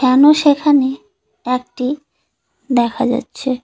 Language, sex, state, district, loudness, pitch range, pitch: Bengali, female, West Bengal, Cooch Behar, -15 LUFS, 250-295 Hz, 265 Hz